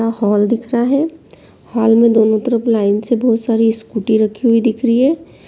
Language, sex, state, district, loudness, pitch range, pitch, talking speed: Hindi, female, Bihar, Jahanabad, -14 LUFS, 220-240 Hz, 230 Hz, 210 wpm